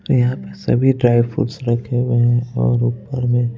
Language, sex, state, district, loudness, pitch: Hindi, male, Madhya Pradesh, Bhopal, -18 LUFS, 120 Hz